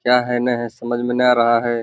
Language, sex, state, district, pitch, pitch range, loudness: Hindi, male, Bihar, Jamui, 120 Hz, 120-125 Hz, -18 LUFS